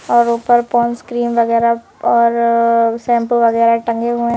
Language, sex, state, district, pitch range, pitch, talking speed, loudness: Hindi, female, Madhya Pradesh, Bhopal, 230-240 Hz, 235 Hz, 135 wpm, -14 LUFS